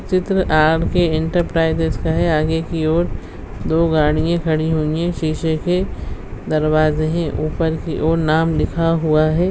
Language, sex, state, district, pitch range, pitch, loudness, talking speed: Hindi, female, Bihar, Madhepura, 155-165 Hz, 160 Hz, -18 LUFS, 150 wpm